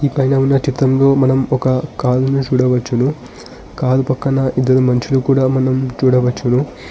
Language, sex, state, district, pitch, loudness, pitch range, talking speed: Telugu, male, Telangana, Hyderabad, 130 Hz, -15 LUFS, 130-135 Hz, 130 wpm